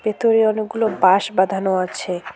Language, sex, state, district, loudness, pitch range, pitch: Bengali, female, West Bengal, Cooch Behar, -18 LUFS, 185-220 Hz, 195 Hz